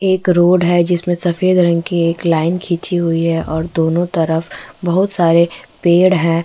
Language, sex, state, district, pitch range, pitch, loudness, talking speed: Hindi, female, Chhattisgarh, Korba, 165-180 Hz, 175 Hz, -15 LUFS, 185 wpm